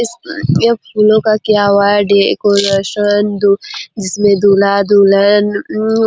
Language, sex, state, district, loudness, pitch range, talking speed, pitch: Hindi, female, Chhattisgarh, Korba, -12 LUFS, 200-215 Hz, 100 wpm, 205 Hz